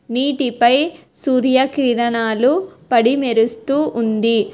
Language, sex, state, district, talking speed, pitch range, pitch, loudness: Telugu, female, Telangana, Hyderabad, 65 wpm, 230-275 Hz, 245 Hz, -16 LUFS